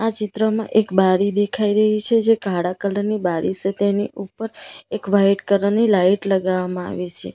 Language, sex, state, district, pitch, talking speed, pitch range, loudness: Gujarati, female, Gujarat, Valsad, 200 Hz, 180 wpm, 190-215 Hz, -19 LUFS